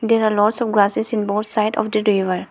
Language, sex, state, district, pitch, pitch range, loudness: English, female, Arunachal Pradesh, Lower Dibang Valley, 215 Hz, 205-220 Hz, -18 LUFS